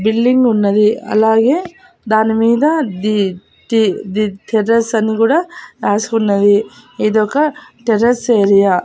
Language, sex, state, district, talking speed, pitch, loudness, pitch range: Telugu, female, Andhra Pradesh, Annamaya, 100 wpm, 220 Hz, -14 LUFS, 210-240 Hz